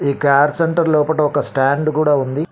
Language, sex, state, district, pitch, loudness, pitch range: Telugu, male, Telangana, Mahabubabad, 150 Hz, -16 LUFS, 140-155 Hz